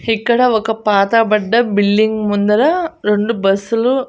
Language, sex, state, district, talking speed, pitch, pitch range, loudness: Telugu, female, Andhra Pradesh, Annamaya, 130 wpm, 220 Hz, 210-235 Hz, -14 LUFS